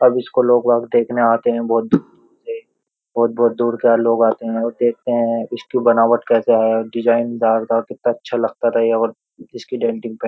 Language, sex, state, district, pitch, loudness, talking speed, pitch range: Hindi, male, Uttar Pradesh, Jyotiba Phule Nagar, 115 Hz, -17 LUFS, 210 wpm, 115-120 Hz